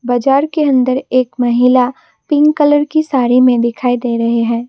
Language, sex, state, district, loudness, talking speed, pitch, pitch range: Hindi, female, Assam, Kamrup Metropolitan, -13 LUFS, 180 wpm, 255 Hz, 245-290 Hz